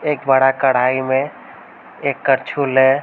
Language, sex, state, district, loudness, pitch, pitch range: Hindi, male, Uttar Pradesh, Varanasi, -16 LUFS, 135 Hz, 130-140 Hz